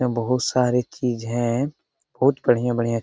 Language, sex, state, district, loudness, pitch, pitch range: Hindi, male, Bihar, Lakhisarai, -22 LUFS, 125 Hz, 120-125 Hz